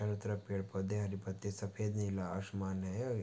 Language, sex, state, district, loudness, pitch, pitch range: Hindi, male, Maharashtra, Pune, -40 LUFS, 100 Hz, 95-105 Hz